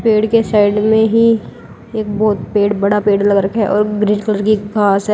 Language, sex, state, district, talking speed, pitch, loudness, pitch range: Hindi, female, Uttar Pradesh, Lalitpur, 220 wpm, 210 Hz, -14 LUFS, 205-220 Hz